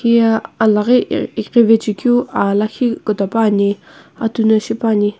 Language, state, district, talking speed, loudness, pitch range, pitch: Sumi, Nagaland, Kohima, 105 wpm, -15 LUFS, 210-230 Hz, 220 Hz